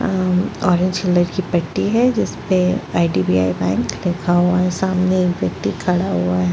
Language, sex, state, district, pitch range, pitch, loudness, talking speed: Hindi, female, Chhattisgarh, Bastar, 170-185 Hz, 180 Hz, -18 LUFS, 165 wpm